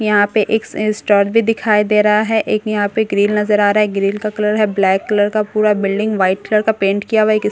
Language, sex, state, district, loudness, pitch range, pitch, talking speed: Hindi, female, Bihar, Katihar, -15 LUFS, 205-215 Hz, 210 Hz, 295 wpm